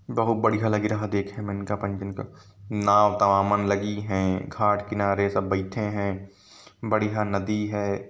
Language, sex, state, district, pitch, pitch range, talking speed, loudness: Hindi, male, Uttar Pradesh, Varanasi, 105 Hz, 100-105 Hz, 140 wpm, -25 LUFS